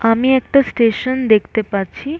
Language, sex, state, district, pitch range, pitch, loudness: Bengali, female, West Bengal, North 24 Parganas, 220-265 Hz, 235 Hz, -15 LUFS